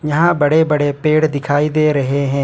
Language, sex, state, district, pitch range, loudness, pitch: Hindi, male, Jharkhand, Ranchi, 145-155 Hz, -15 LUFS, 150 Hz